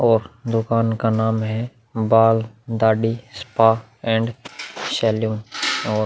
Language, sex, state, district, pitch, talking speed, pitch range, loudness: Hindi, male, Uttar Pradesh, Muzaffarnagar, 115 Hz, 110 wpm, 110-115 Hz, -20 LUFS